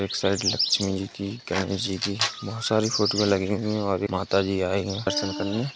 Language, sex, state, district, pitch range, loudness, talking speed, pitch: Hindi, male, Uttar Pradesh, Jalaun, 95-105 Hz, -25 LUFS, 210 wpm, 100 Hz